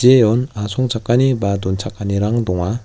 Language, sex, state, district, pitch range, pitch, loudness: Garo, male, Meghalaya, West Garo Hills, 100-120 Hz, 110 Hz, -17 LUFS